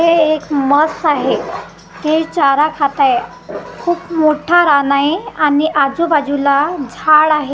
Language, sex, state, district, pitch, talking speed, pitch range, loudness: Marathi, female, Maharashtra, Gondia, 305 Hz, 150 wpm, 285-325 Hz, -14 LUFS